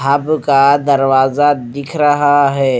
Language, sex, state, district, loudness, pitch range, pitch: Hindi, male, Punjab, Fazilka, -12 LUFS, 135-145 Hz, 140 Hz